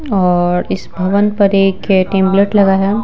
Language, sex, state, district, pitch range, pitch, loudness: Hindi, female, Bihar, Patna, 185-200 Hz, 195 Hz, -13 LUFS